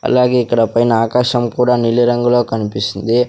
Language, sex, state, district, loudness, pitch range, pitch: Telugu, male, Andhra Pradesh, Sri Satya Sai, -14 LUFS, 115-125 Hz, 120 Hz